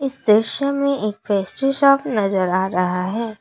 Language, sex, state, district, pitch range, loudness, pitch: Hindi, female, Assam, Kamrup Metropolitan, 195-275 Hz, -19 LUFS, 220 Hz